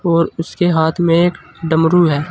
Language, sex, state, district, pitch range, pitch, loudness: Hindi, male, Uttar Pradesh, Saharanpur, 160-175 Hz, 165 Hz, -15 LUFS